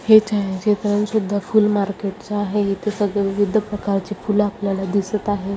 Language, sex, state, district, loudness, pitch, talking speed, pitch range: Marathi, female, Maharashtra, Chandrapur, -20 LUFS, 205 Hz, 170 wpm, 200-210 Hz